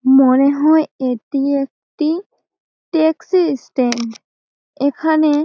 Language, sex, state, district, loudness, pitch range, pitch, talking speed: Bengali, female, West Bengal, Malda, -16 LUFS, 265-315 Hz, 285 Hz, 75 wpm